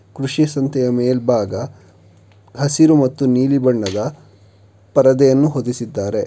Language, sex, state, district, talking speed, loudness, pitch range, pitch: Kannada, male, Karnataka, Bangalore, 85 wpm, -16 LUFS, 105-140 Hz, 130 Hz